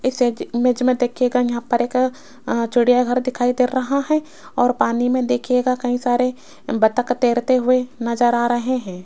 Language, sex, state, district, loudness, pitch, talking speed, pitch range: Hindi, female, Rajasthan, Jaipur, -19 LUFS, 250 Hz, 170 wpm, 240-255 Hz